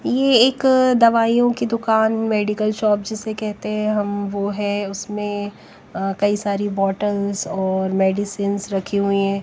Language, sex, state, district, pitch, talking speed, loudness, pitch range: Hindi, female, Bihar, West Champaran, 205 Hz, 140 wpm, -19 LUFS, 200-220 Hz